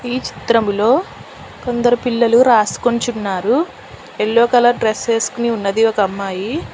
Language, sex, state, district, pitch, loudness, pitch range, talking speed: Telugu, female, Telangana, Hyderabad, 235 Hz, -16 LUFS, 215-245 Hz, 105 wpm